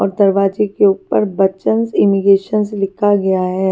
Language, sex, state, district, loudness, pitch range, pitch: Hindi, female, Haryana, Charkhi Dadri, -14 LUFS, 195-205 Hz, 200 Hz